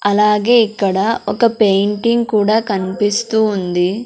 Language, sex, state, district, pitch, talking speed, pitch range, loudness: Telugu, female, Andhra Pradesh, Sri Satya Sai, 210 Hz, 105 wpm, 200-225 Hz, -15 LUFS